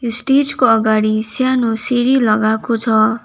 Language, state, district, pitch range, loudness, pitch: Nepali, West Bengal, Darjeeling, 220-255 Hz, -14 LUFS, 230 Hz